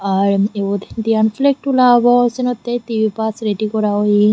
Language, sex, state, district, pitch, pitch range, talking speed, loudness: Chakma, female, Tripura, Unakoti, 220 Hz, 205-245 Hz, 165 wpm, -16 LUFS